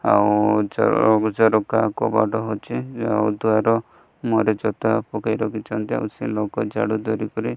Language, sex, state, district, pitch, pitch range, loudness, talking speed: Odia, male, Odisha, Malkangiri, 110 Hz, 105-110 Hz, -21 LUFS, 125 wpm